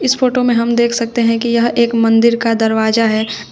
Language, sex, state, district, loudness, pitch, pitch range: Hindi, female, Uttar Pradesh, Shamli, -14 LUFS, 235 Hz, 225-235 Hz